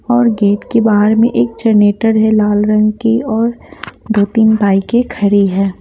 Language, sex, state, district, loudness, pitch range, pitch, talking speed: Hindi, female, Haryana, Jhajjar, -12 LUFS, 205-230 Hz, 220 Hz, 175 wpm